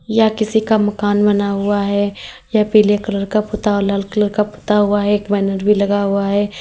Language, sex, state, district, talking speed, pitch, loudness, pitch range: Hindi, female, Uttar Pradesh, Lalitpur, 225 wpm, 205 Hz, -16 LUFS, 200-210 Hz